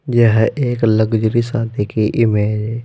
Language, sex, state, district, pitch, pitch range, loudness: Hindi, male, Uttar Pradesh, Saharanpur, 115 Hz, 110-120 Hz, -16 LUFS